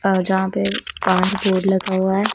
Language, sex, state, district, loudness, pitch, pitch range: Hindi, female, Punjab, Kapurthala, -19 LUFS, 190 Hz, 190-195 Hz